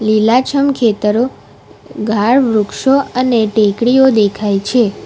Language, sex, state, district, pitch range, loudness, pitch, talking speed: Gujarati, female, Gujarat, Valsad, 215-255 Hz, -13 LUFS, 230 Hz, 95 wpm